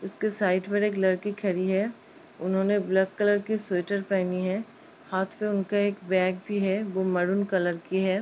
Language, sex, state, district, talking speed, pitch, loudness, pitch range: Hindi, female, Uttar Pradesh, Ghazipur, 190 wpm, 195 Hz, -27 LUFS, 185-205 Hz